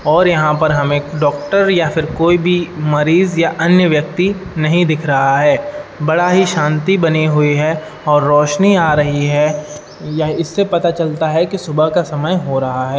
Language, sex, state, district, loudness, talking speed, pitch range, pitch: Hindi, male, Uttar Pradesh, Budaun, -14 LUFS, 175 wpm, 150-175 Hz, 155 Hz